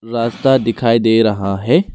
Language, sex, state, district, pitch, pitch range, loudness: Hindi, male, Arunachal Pradesh, Lower Dibang Valley, 115 Hz, 110-125 Hz, -15 LUFS